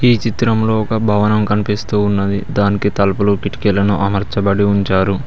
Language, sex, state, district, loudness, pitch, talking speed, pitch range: Telugu, male, Telangana, Mahabubabad, -15 LUFS, 100 Hz, 125 wpm, 100-105 Hz